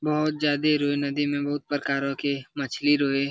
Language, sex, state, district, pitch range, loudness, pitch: Hindi, male, Bihar, Jamui, 140-145 Hz, -25 LUFS, 145 Hz